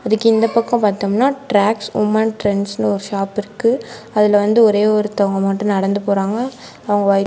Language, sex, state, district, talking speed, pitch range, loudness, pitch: Tamil, female, Tamil Nadu, Namakkal, 155 wpm, 200-225 Hz, -16 LUFS, 210 Hz